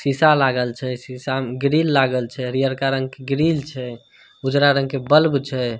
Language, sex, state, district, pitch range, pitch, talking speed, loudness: Hindi, male, Bihar, Samastipur, 125-140 Hz, 135 Hz, 185 wpm, -19 LUFS